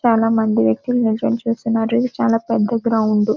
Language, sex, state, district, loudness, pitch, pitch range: Telugu, female, Telangana, Karimnagar, -18 LUFS, 225 Hz, 220-235 Hz